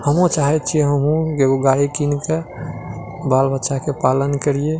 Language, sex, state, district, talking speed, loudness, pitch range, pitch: Maithili, male, Bihar, Madhepura, 160 wpm, -18 LUFS, 135-155 Hz, 145 Hz